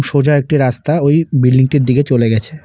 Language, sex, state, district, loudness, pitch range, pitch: Bengali, male, West Bengal, Alipurduar, -13 LUFS, 130-150 Hz, 140 Hz